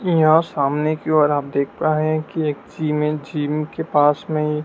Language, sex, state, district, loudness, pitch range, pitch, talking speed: Hindi, male, Madhya Pradesh, Dhar, -19 LUFS, 150-155 Hz, 150 Hz, 230 wpm